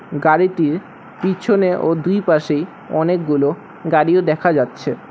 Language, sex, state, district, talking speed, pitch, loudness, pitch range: Bengali, male, West Bengal, Alipurduar, 105 wpm, 165 Hz, -17 LUFS, 155-185 Hz